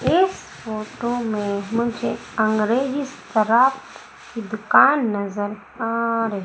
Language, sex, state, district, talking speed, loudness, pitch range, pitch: Hindi, female, Madhya Pradesh, Umaria, 100 wpm, -21 LUFS, 215-245 Hz, 225 Hz